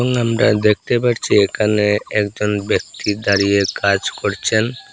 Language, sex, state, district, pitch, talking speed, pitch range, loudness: Bengali, male, Assam, Hailakandi, 105 Hz, 110 wpm, 100-110 Hz, -17 LUFS